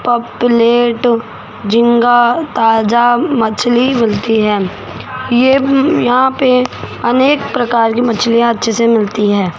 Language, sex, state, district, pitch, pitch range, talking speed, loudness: Hindi, female, Rajasthan, Jaipur, 240 Hz, 225-250 Hz, 115 wpm, -12 LUFS